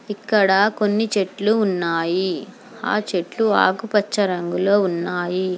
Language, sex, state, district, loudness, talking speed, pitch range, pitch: Telugu, female, Telangana, Hyderabad, -20 LUFS, 105 wpm, 180-210 Hz, 200 Hz